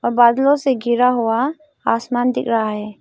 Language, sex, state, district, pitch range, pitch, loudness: Hindi, female, Arunachal Pradesh, Lower Dibang Valley, 230-265 Hz, 240 Hz, -17 LUFS